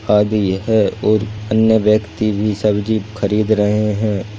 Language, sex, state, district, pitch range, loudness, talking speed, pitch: Hindi, male, Bihar, Purnia, 105-110 Hz, -16 LUFS, 135 wpm, 105 Hz